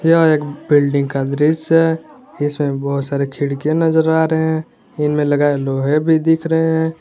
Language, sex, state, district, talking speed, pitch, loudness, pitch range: Hindi, male, Jharkhand, Garhwa, 180 wpm, 150 Hz, -16 LUFS, 140-160 Hz